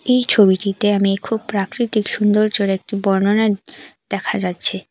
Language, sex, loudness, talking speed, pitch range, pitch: Bengali, female, -17 LUFS, 120 wpm, 195-215 Hz, 205 Hz